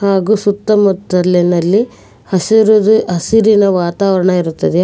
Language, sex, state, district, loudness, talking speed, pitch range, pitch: Kannada, female, Karnataka, Koppal, -12 LUFS, 75 wpm, 180-215 Hz, 195 Hz